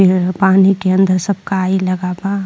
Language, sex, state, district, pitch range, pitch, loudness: Bhojpuri, female, Uttar Pradesh, Deoria, 185-195 Hz, 190 Hz, -14 LUFS